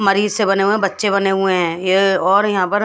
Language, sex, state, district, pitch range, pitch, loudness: Hindi, female, Haryana, Charkhi Dadri, 190-205 Hz, 195 Hz, -16 LUFS